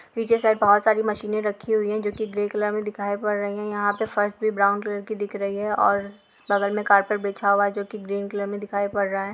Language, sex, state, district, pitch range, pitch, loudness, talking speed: Hindi, female, Bihar, Jahanabad, 200-210 Hz, 205 Hz, -23 LUFS, 275 wpm